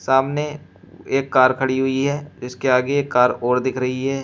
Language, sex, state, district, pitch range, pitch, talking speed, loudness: Hindi, male, Uttar Pradesh, Shamli, 130-140 Hz, 130 Hz, 200 wpm, -19 LUFS